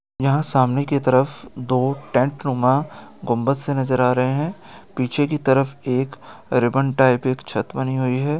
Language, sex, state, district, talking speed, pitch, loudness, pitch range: Hindi, male, Chhattisgarh, Raigarh, 170 wpm, 130 Hz, -20 LUFS, 130-140 Hz